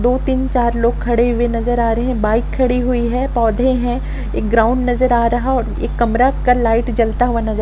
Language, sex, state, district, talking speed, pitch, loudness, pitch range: Hindi, female, Chhattisgarh, Kabirdham, 230 wpm, 240 Hz, -16 LUFS, 230-250 Hz